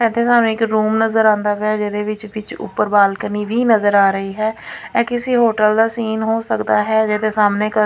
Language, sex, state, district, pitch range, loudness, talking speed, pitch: Punjabi, female, Punjab, Pathankot, 210-225 Hz, -16 LUFS, 205 wpm, 215 Hz